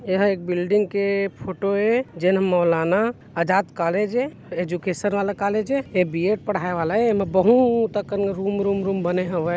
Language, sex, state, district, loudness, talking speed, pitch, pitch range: Chhattisgarhi, male, Chhattisgarh, Bilaspur, -22 LUFS, 195 wpm, 195 Hz, 180-205 Hz